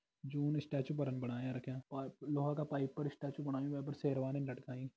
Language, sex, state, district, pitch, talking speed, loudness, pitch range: Garhwali, male, Uttarakhand, Tehri Garhwal, 140 Hz, 195 wpm, -41 LUFS, 130-145 Hz